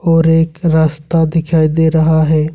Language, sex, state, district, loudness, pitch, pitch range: Hindi, male, Jharkhand, Ranchi, -12 LUFS, 160 Hz, 160-165 Hz